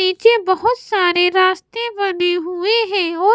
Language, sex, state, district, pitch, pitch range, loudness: Hindi, female, Bihar, West Champaran, 380 Hz, 360-450 Hz, -16 LUFS